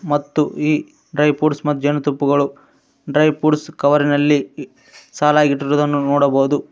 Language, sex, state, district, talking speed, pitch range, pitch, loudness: Kannada, male, Karnataka, Koppal, 115 wpm, 145-150 Hz, 145 Hz, -17 LUFS